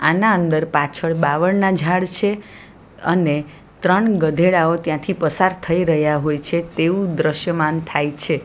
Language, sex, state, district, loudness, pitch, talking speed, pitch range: Gujarati, female, Gujarat, Valsad, -18 LUFS, 165 Hz, 135 wpm, 155-180 Hz